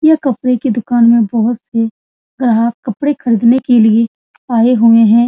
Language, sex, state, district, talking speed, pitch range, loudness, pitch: Hindi, female, Bihar, Supaul, 170 wpm, 230-250 Hz, -12 LUFS, 235 Hz